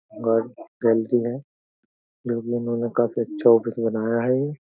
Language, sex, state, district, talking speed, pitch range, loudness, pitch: Hindi, male, Uttar Pradesh, Jyotiba Phule Nagar, 140 wpm, 115-120 Hz, -23 LUFS, 120 Hz